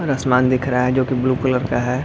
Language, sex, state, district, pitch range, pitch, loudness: Hindi, male, Chhattisgarh, Bilaspur, 125-130 Hz, 130 Hz, -18 LUFS